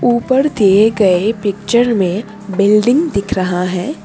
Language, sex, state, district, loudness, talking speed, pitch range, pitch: Hindi, female, Assam, Kamrup Metropolitan, -14 LUFS, 135 wpm, 190-235 Hz, 210 Hz